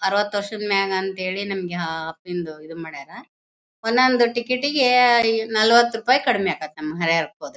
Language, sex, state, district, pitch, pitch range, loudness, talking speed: Kannada, female, Karnataka, Bellary, 200 Hz, 165-235 Hz, -20 LUFS, 150 wpm